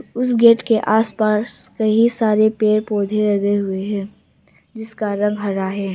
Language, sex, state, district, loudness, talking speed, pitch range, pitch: Hindi, female, Arunachal Pradesh, Papum Pare, -18 LUFS, 160 wpm, 205-220 Hz, 215 Hz